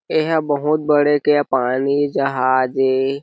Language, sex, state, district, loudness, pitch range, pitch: Chhattisgarhi, male, Chhattisgarh, Sarguja, -17 LUFS, 130-150 Hz, 140 Hz